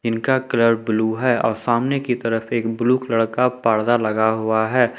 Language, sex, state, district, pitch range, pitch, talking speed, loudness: Hindi, male, Jharkhand, Ranchi, 110-125 Hz, 115 Hz, 180 wpm, -19 LUFS